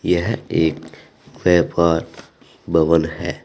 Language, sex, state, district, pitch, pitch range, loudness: Hindi, male, Uttar Pradesh, Saharanpur, 80 Hz, 80-85 Hz, -18 LUFS